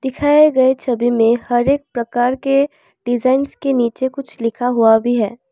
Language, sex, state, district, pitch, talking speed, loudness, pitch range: Hindi, female, Assam, Kamrup Metropolitan, 250 Hz, 175 wpm, -16 LUFS, 235-270 Hz